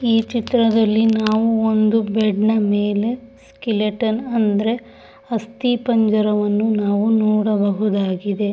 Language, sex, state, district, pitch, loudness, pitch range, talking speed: Kannada, female, Karnataka, Shimoga, 220 Hz, -18 LUFS, 210-225 Hz, 90 wpm